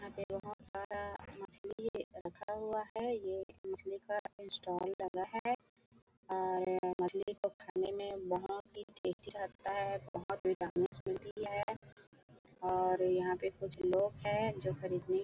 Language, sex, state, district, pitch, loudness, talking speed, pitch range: Hindi, female, Chhattisgarh, Bilaspur, 195 Hz, -39 LUFS, 140 wpm, 185-210 Hz